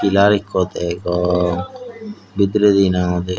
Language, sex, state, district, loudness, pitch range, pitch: Chakma, male, Tripura, Dhalai, -17 LUFS, 90-105 Hz, 95 Hz